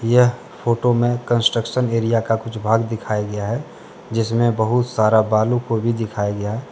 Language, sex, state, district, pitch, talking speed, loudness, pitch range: Hindi, male, Jharkhand, Deoghar, 115 Hz, 170 wpm, -19 LUFS, 110-120 Hz